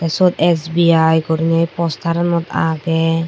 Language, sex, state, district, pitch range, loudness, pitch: Chakma, female, Tripura, Dhalai, 160-170 Hz, -16 LUFS, 165 Hz